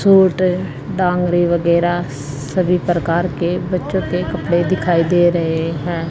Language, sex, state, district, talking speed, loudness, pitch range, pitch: Hindi, female, Haryana, Jhajjar, 130 wpm, -17 LUFS, 165-180 Hz, 175 Hz